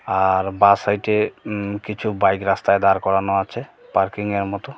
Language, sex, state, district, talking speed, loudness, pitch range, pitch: Bengali, male, West Bengal, Cooch Behar, 150 wpm, -20 LUFS, 95-105 Hz, 100 Hz